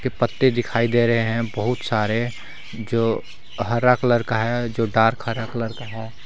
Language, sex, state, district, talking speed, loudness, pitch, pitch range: Hindi, male, Jharkhand, Garhwa, 170 wpm, -21 LUFS, 115 Hz, 110-120 Hz